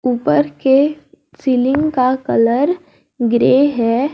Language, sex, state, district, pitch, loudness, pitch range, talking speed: Hindi, female, Jharkhand, Garhwa, 260 Hz, -15 LUFS, 235-285 Hz, 100 wpm